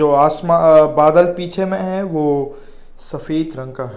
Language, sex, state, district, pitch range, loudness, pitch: Hindi, male, Nagaland, Kohima, 140-175 Hz, -15 LUFS, 155 Hz